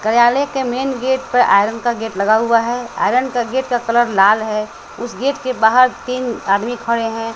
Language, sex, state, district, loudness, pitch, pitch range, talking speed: Hindi, female, Bihar, West Champaran, -16 LUFS, 240 Hz, 225-255 Hz, 210 wpm